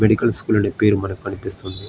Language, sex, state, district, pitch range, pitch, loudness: Telugu, male, Andhra Pradesh, Srikakulam, 95-110 Hz, 100 Hz, -20 LUFS